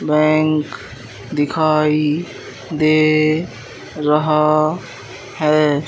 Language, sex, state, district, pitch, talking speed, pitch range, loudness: Hindi, male, Madhya Pradesh, Katni, 155 Hz, 50 wpm, 150-155 Hz, -16 LUFS